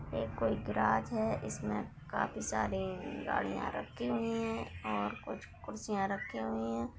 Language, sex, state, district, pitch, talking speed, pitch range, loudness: Hindi, female, Bihar, Darbhanga, 110 Hz, 145 wpm, 105-115 Hz, -36 LUFS